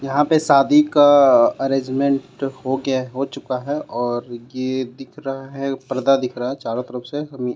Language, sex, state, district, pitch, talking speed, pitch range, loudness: Hindi, male, Jharkhand, Garhwa, 135 Hz, 180 wpm, 130-140 Hz, -19 LUFS